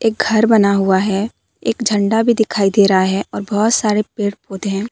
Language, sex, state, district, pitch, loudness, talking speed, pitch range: Hindi, female, Jharkhand, Deoghar, 205 Hz, -16 LUFS, 205 wpm, 195-220 Hz